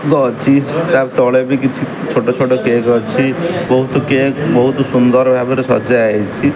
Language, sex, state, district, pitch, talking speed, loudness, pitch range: Odia, male, Odisha, Khordha, 130 Hz, 135 wpm, -13 LUFS, 125-135 Hz